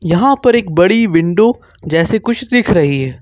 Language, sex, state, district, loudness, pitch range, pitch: Hindi, male, Jharkhand, Ranchi, -12 LUFS, 165-235 Hz, 210 Hz